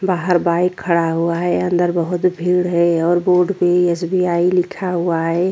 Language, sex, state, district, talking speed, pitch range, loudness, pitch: Hindi, female, Chhattisgarh, Korba, 205 wpm, 170-180 Hz, -17 LUFS, 175 Hz